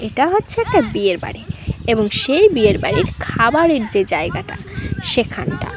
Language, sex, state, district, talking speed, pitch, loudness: Bengali, female, West Bengal, Kolkata, 135 wpm, 290 Hz, -17 LUFS